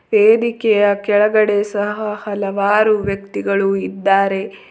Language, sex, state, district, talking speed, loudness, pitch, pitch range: Kannada, female, Karnataka, Bidar, 75 wpm, -16 LUFS, 205 Hz, 200-215 Hz